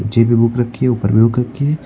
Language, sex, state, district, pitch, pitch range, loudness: Hindi, male, Uttar Pradesh, Lucknow, 120 Hz, 115-125 Hz, -15 LUFS